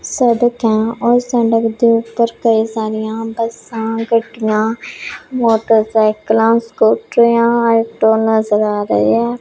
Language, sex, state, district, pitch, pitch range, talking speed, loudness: Punjabi, female, Punjab, Pathankot, 225 Hz, 220-235 Hz, 100 wpm, -14 LUFS